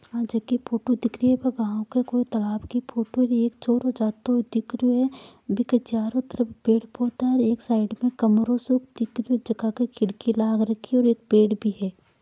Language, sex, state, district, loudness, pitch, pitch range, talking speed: Marwari, female, Rajasthan, Nagaur, -24 LUFS, 235 Hz, 220-245 Hz, 220 wpm